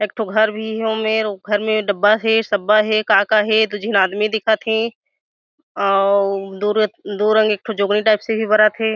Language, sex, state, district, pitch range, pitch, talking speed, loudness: Chhattisgarhi, female, Chhattisgarh, Jashpur, 205-220 Hz, 215 Hz, 230 wpm, -17 LUFS